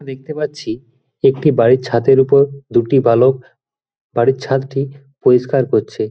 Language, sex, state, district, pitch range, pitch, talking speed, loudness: Bengali, male, West Bengal, Jhargram, 125-140 Hz, 135 Hz, 120 wpm, -15 LUFS